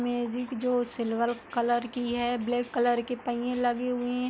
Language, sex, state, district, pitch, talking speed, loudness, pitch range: Hindi, female, Uttar Pradesh, Hamirpur, 245 Hz, 180 wpm, -29 LUFS, 240-245 Hz